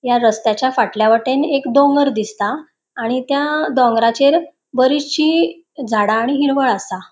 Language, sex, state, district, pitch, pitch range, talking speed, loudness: Konkani, female, Goa, North and South Goa, 260 Hz, 230-285 Hz, 125 wpm, -16 LUFS